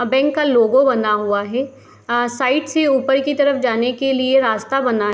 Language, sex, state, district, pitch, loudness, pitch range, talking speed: Hindi, female, Bihar, Darbhanga, 260 Hz, -17 LUFS, 235-270 Hz, 220 wpm